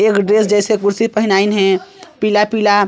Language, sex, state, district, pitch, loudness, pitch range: Chhattisgarhi, male, Chhattisgarh, Sarguja, 210 Hz, -14 LUFS, 200-215 Hz